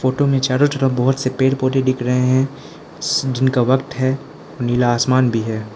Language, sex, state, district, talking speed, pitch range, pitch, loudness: Hindi, male, Arunachal Pradesh, Lower Dibang Valley, 200 wpm, 125-135 Hz, 130 Hz, -18 LUFS